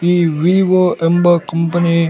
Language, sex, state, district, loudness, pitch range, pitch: Kannada, male, Karnataka, Bellary, -13 LUFS, 165-175 Hz, 175 Hz